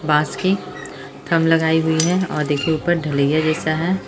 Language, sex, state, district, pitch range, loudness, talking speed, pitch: Hindi, female, Bihar, Araria, 150-170 Hz, -18 LUFS, 175 wpm, 160 Hz